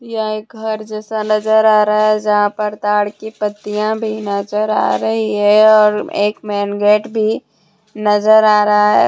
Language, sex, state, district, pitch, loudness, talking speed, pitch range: Hindi, female, Jharkhand, Deoghar, 215 Hz, -15 LUFS, 180 wpm, 210-215 Hz